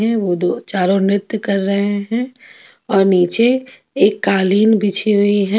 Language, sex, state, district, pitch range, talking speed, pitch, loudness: Hindi, female, Jharkhand, Ranchi, 195-220 Hz, 160 wpm, 205 Hz, -16 LUFS